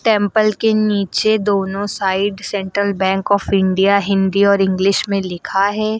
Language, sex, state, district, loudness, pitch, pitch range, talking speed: Hindi, female, Uttar Pradesh, Lucknow, -16 LUFS, 200 Hz, 195-205 Hz, 150 wpm